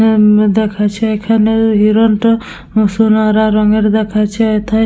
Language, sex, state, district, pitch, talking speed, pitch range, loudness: Bengali, female, West Bengal, Dakshin Dinajpur, 215 Hz, 110 wpm, 210-220 Hz, -12 LUFS